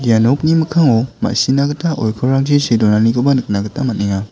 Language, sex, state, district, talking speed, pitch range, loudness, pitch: Garo, male, Meghalaya, West Garo Hills, 155 wpm, 110-145 Hz, -15 LUFS, 125 Hz